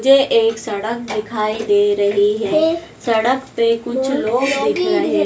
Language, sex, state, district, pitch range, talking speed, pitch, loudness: Hindi, female, Madhya Pradesh, Dhar, 215-270 Hz, 150 wpm, 230 Hz, -17 LUFS